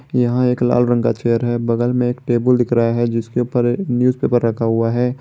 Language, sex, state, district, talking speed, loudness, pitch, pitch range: Hindi, male, Jharkhand, Garhwa, 230 wpm, -17 LUFS, 120 Hz, 115-125 Hz